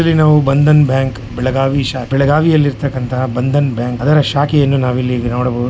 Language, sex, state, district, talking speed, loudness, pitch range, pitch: Kannada, male, Karnataka, Shimoga, 170 wpm, -14 LUFS, 125-145 Hz, 135 Hz